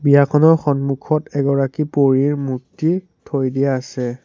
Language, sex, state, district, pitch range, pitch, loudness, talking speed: Assamese, male, Assam, Sonitpur, 135-150 Hz, 140 Hz, -18 LUFS, 115 wpm